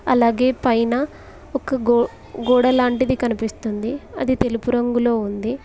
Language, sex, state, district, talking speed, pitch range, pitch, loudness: Telugu, female, Telangana, Mahabubabad, 105 wpm, 230-255 Hz, 240 Hz, -20 LUFS